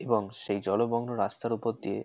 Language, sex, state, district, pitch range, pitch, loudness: Bengali, male, West Bengal, North 24 Parganas, 100-115 Hz, 115 Hz, -30 LUFS